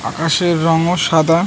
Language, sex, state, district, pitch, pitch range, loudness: Bengali, male, West Bengal, North 24 Parganas, 165 Hz, 160-170 Hz, -15 LUFS